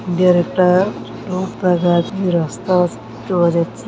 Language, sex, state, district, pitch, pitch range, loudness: Bengali, male, West Bengal, Jhargram, 180 Hz, 175-185 Hz, -16 LUFS